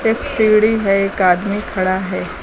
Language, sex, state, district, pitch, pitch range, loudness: Hindi, female, Uttar Pradesh, Lucknow, 200 Hz, 190-220 Hz, -16 LUFS